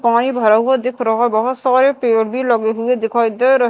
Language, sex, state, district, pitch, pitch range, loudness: Hindi, female, Madhya Pradesh, Dhar, 240 Hz, 225-255 Hz, -15 LUFS